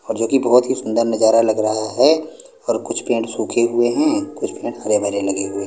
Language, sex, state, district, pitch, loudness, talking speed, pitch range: Hindi, male, Punjab, Pathankot, 115 Hz, -18 LUFS, 230 wpm, 110-130 Hz